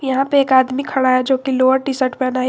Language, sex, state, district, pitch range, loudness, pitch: Hindi, female, Jharkhand, Garhwa, 255-270 Hz, -16 LUFS, 260 Hz